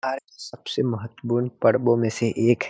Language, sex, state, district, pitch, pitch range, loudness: Hindi, male, Bihar, Muzaffarpur, 120 Hz, 115-125 Hz, -23 LUFS